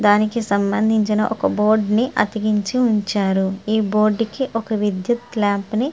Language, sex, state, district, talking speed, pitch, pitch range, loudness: Telugu, female, Andhra Pradesh, Guntur, 130 wpm, 215 Hz, 205-225 Hz, -19 LUFS